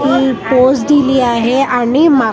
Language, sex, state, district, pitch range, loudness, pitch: Marathi, female, Maharashtra, Washim, 250-275 Hz, -11 LUFS, 265 Hz